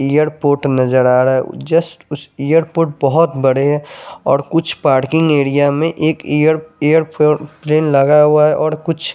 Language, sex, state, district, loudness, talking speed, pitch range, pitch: Hindi, male, Chandigarh, Chandigarh, -14 LUFS, 170 wpm, 140-160 Hz, 150 Hz